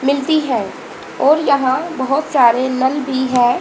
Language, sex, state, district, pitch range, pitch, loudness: Hindi, female, Haryana, Jhajjar, 255-285 Hz, 265 Hz, -15 LUFS